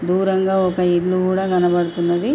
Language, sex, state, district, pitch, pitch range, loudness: Telugu, female, Telangana, Nalgonda, 180 Hz, 175-190 Hz, -18 LUFS